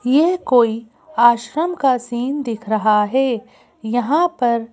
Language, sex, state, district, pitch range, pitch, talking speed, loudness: Hindi, female, Madhya Pradesh, Bhopal, 230-275 Hz, 245 Hz, 140 wpm, -18 LUFS